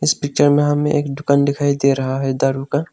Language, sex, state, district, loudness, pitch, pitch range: Hindi, male, Arunachal Pradesh, Longding, -17 LUFS, 140 Hz, 135-145 Hz